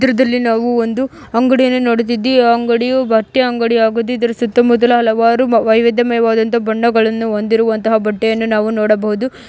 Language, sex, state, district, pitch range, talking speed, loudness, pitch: Kannada, female, Karnataka, Mysore, 225-240 Hz, 125 wpm, -13 LUFS, 235 Hz